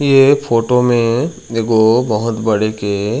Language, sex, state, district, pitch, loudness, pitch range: Chhattisgarhi, male, Chhattisgarh, Raigarh, 115 Hz, -14 LUFS, 110-125 Hz